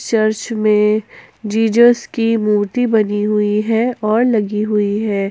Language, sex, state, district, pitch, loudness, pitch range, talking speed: Hindi, female, Jharkhand, Ranchi, 215 Hz, -15 LUFS, 210-230 Hz, 135 wpm